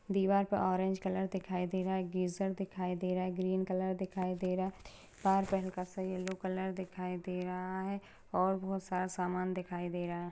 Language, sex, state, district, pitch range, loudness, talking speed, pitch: Hindi, female, Uttar Pradesh, Ghazipur, 185-190 Hz, -36 LUFS, 180 wpm, 185 Hz